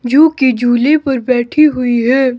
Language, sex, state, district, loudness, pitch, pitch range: Hindi, male, Himachal Pradesh, Shimla, -12 LUFS, 255 Hz, 245-285 Hz